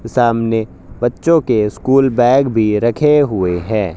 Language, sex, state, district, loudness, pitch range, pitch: Hindi, male, Haryana, Jhajjar, -14 LUFS, 105-130 Hz, 115 Hz